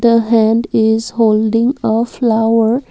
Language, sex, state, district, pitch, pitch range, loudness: English, female, Assam, Kamrup Metropolitan, 225 Hz, 220-235 Hz, -13 LUFS